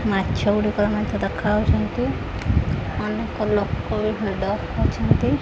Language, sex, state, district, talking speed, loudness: Odia, female, Odisha, Khordha, 100 wpm, -22 LUFS